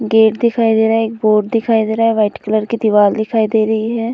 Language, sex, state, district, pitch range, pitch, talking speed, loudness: Hindi, female, Uttar Pradesh, Hamirpur, 215-225 Hz, 220 Hz, 275 wpm, -14 LUFS